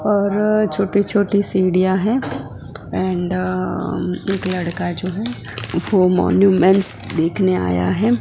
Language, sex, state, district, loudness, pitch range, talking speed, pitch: Hindi, female, Gujarat, Gandhinagar, -17 LUFS, 180-200 Hz, 110 wpm, 185 Hz